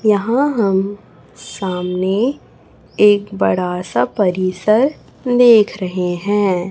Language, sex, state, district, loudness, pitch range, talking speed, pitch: Hindi, female, Chhattisgarh, Raipur, -16 LUFS, 185-220 Hz, 90 wpm, 200 Hz